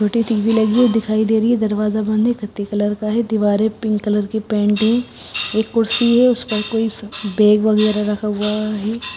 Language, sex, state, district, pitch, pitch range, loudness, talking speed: Hindi, female, Odisha, Sambalpur, 215 Hz, 210-225 Hz, -16 LUFS, 205 wpm